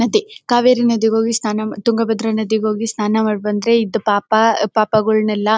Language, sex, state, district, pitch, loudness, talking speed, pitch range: Kannada, female, Karnataka, Bellary, 220 Hz, -16 LUFS, 150 wpm, 215-230 Hz